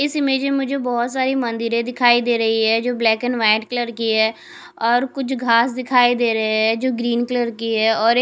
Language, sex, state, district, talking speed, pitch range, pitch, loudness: Hindi, female, Punjab, Kapurthala, 235 wpm, 225-250 Hz, 240 Hz, -18 LUFS